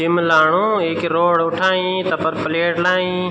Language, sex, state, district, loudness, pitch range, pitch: Garhwali, male, Uttarakhand, Tehri Garhwal, -17 LUFS, 165-180 Hz, 170 Hz